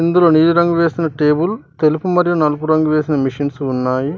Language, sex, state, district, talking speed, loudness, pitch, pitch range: Telugu, male, Telangana, Mahabubabad, 170 wpm, -15 LUFS, 155 Hz, 150-170 Hz